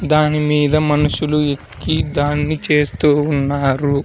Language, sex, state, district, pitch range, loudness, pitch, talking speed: Telugu, male, Andhra Pradesh, Sri Satya Sai, 145-150 Hz, -16 LUFS, 150 Hz, 90 wpm